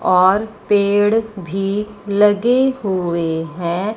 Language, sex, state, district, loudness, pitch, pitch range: Hindi, female, Chandigarh, Chandigarh, -17 LUFS, 205 Hz, 185-210 Hz